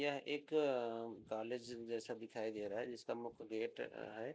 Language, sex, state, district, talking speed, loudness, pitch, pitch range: Hindi, male, Uttar Pradesh, Deoria, 180 wpm, -44 LUFS, 120 Hz, 115-145 Hz